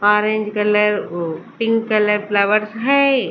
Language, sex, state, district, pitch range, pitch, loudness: Hindi, female, Bihar, Patna, 210-225 Hz, 210 Hz, -17 LUFS